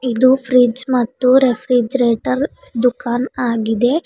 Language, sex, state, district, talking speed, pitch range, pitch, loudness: Kannada, female, Karnataka, Bidar, 90 wpm, 240-260 Hz, 250 Hz, -16 LUFS